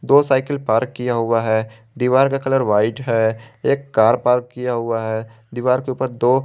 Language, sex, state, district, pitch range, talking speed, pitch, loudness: Hindi, male, Jharkhand, Garhwa, 115-130 Hz, 195 wpm, 120 Hz, -19 LUFS